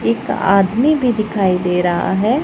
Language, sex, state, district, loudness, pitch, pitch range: Hindi, male, Punjab, Pathankot, -16 LUFS, 195 Hz, 180-230 Hz